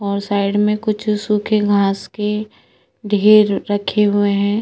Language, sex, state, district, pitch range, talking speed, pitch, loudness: Hindi, female, Chhattisgarh, Sukma, 200-210 Hz, 145 wpm, 205 Hz, -16 LUFS